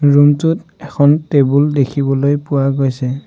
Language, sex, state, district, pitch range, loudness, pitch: Assamese, male, Assam, Sonitpur, 135-145 Hz, -14 LUFS, 145 Hz